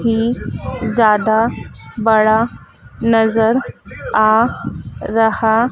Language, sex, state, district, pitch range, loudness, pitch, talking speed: Hindi, female, Madhya Pradesh, Dhar, 220-230 Hz, -15 LUFS, 225 Hz, 65 wpm